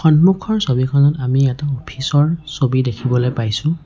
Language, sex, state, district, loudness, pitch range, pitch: Assamese, male, Assam, Sonitpur, -17 LUFS, 130-155 Hz, 135 Hz